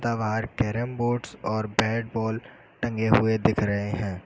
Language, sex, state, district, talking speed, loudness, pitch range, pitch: Hindi, male, Uttar Pradesh, Lucknow, 155 wpm, -26 LUFS, 110-115 Hz, 110 Hz